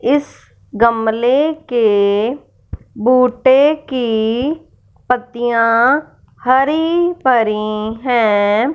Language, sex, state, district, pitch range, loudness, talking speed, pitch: Hindi, female, Punjab, Fazilka, 225-275 Hz, -15 LUFS, 60 wpm, 245 Hz